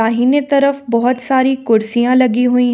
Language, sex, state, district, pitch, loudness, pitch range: Hindi, female, Jharkhand, Ranchi, 250 Hz, -14 LUFS, 240-265 Hz